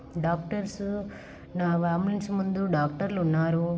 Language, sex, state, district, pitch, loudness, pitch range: Telugu, male, Andhra Pradesh, Guntur, 175 Hz, -28 LUFS, 170-200 Hz